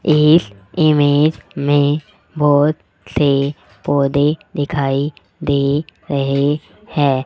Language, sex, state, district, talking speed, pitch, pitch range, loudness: Hindi, male, Rajasthan, Jaipur, 85 wpm, 145 Hz, 140-150 Hz, -16 LUFS